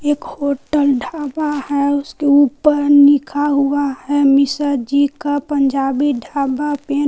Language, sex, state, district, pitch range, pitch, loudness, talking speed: Hindi, female, Jharkhand, Palamu, 280-290 Hz, 285 Hz, -16 LUFS, 120 wpm